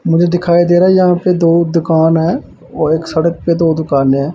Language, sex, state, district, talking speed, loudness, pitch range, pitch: Hindi, male, Punjab, Pathankot, 235 wpm, -12 LUFS, 160-175 Hz, 165 Hz